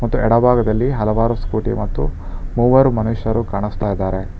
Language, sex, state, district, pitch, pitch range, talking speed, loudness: Kannada, male, Karnataka, Bangalore, 110 Hz, 100-120 Hz, 135 wpm, -17 LUFS